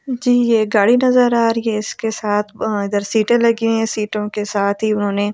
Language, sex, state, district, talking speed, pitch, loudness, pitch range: Hindi, female, Delhi, New Delhi, 215 wpm, 220 Hz, -17 LUFS, 210-230 Hz